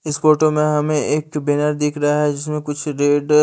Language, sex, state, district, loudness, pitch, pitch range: Hindi, male, Haryana, Rohtak, -18 LUFS, 150 Hz, 145-150 Hz